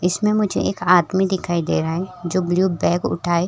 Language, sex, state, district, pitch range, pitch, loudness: Hindi, female, Chhattisgarh, Rajnandgaon, 175-190 Hz, 180 Hz, -20 LUFS